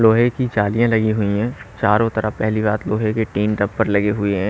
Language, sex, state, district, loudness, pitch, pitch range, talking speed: Hindi, male, Haryana, Rohtak, -19 LUFS, 110 Hz, 105-110 Hz, 225 wpm